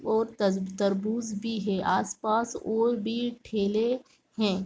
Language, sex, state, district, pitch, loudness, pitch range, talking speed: Hindi, female, Uttar Pradesh, Jalaun, 220 Hz, -28 LUFS, 205-230 Hz, 130 wpm